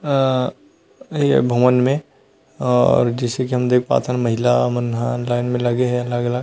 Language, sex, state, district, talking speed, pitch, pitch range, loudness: Chhattisgarhi, male, Chhattisgarh, Rajnandgaon, 170 wpm, 125 Hz, 120-125 Hz, -18 LUFS